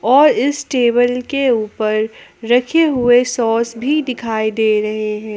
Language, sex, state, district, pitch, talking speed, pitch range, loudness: Hindi, female, Jharkhand, Palamu, 240 Hz, 145 wpm, 220-255 Hz, -16 LUFS